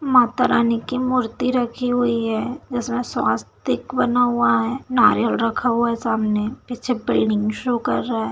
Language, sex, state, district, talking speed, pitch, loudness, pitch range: Hindi, female, Bihar, Saharsa, 165 wpm, 245 Hz, -20 LUFS, 230-250 Hz